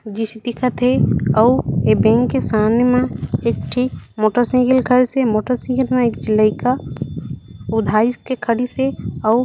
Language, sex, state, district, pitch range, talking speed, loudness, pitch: Chhattisgarhi, female, Chhattisgarh, Raigarh, 215-250 Hz, 145 wpm, -17 LUFS, 240 Hz